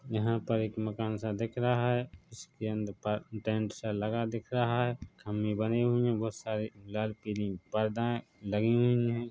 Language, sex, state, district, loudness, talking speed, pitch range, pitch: Hindi, male, Chhattisgarh, Bilaspur, -32 LUFS, 185 wpm, 105-120 Hz, 110 Hz